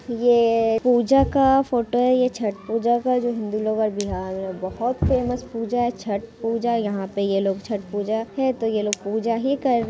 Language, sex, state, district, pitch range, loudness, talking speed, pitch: Hindi, female, Bihar, Muzaffarpur, 210-245 Hz, -22 LUFS, 210 wpm, 230 Hz